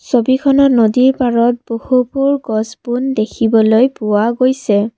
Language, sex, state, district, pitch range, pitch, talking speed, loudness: Assamese, female, Assam, Kamrup Metropolitan, 225-260 Hz, 240 Hz, 110 wpm, -14 LUFS